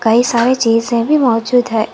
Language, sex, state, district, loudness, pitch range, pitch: Hindi, female, Karnataka, Koppal, -13 LUFS, 230-250 Hz, 235 Hz